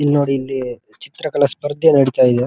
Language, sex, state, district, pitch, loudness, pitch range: Kannada, male, Karnataka, Dharwad, 135 Hz, -16 LUFS, 130-145 Hz